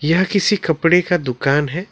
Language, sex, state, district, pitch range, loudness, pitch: Hindi, male, West Bengal, Alipurduar, 150-185 Hz, -17 LUFS, 170 Hz